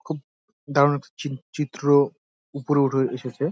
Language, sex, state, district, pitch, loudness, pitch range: Bengali, male, West Bengal, Dakshin Dinajpur, 140 Hz, -23 LUFS, 135-150 Hz